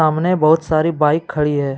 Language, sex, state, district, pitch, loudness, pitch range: Hindi, male, Jharkhand, Deoghar, 155 Hz, -16 LUFS, 150-160 Hz